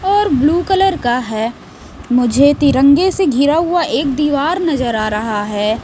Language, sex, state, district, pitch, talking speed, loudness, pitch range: Hindi, female, Bihar, West Champaran, 285 Hz, 165 wpm, -14 LUFS, 240-340 Hz